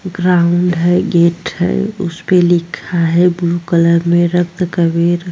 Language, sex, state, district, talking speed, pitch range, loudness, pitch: Hindi, female, Bihar, Vaishali, 145 wpm, 170-180 Hz, -13 LUFS, 175 Hz